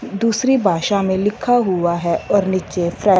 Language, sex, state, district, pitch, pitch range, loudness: Hindi, female, Punjab, Fazilka, 195 Hz, 180-210 Hz, -17 LUFS